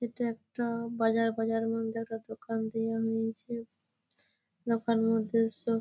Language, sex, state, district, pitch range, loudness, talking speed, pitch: Bengali, female, West Bengal, Malda, 225-230 Hz, -32 LUFS, 125 wpm, 225 Hz